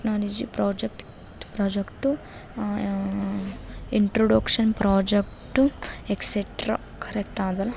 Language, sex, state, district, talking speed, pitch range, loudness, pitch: Kannada, female, Karnataka, Dharwad, 85 wpm, 195-220 Hz, -23 LUFS, 200 Hz